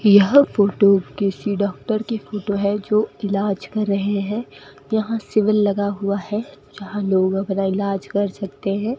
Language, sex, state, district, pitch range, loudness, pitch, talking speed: Hindi, female, Rajasthan, Bikaner, 195-215 Hz, -20 LUFS, 200 Hz, 160 wpm